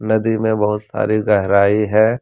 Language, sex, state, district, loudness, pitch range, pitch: Hindi, male, Jharkhand, Deoghar, -16 LUFS, 105-110 Hz, 110 Hz